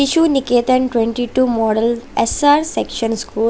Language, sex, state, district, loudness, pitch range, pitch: Hindi, female, Chandigarh, Chandigarh, -16 LUFS, 230-275 Hz, 245 Hz